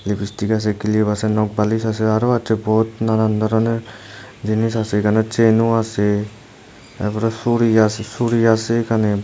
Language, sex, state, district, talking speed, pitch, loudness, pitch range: Bengali, male, Tripura, Unakoti, 150 wpm, 110 Hz, -18 LUFS, 105-115 Hz